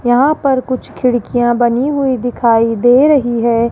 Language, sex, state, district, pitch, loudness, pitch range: Hindi, female, Rajasthan, Jaipur, 245 Hz, -13 LUFS, 240-260 Hz